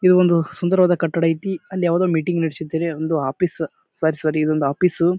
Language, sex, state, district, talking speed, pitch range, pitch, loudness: Kannada, male, Karnataka, Bijapur, 220 wpm, 160-180 Hz, 170 Hz, -20 LUFS